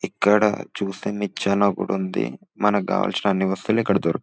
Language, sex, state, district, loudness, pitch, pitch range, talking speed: Telugu, male, Telangana, Nalgonda, -22 LUFS, 100 Hz, 95-105 Hz, 170 wpm